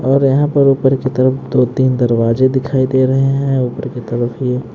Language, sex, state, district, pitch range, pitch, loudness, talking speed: Hindi, male, Haryana, Jhajjar, 125-135 Hz, 130 Hz, -14 LUFS, 200 wpm